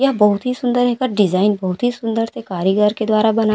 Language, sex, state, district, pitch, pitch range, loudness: Chhattisgarhi, female, Chhattisgarh, Raigarh, 220 Hz, 205-245 Hz, -17 LUFS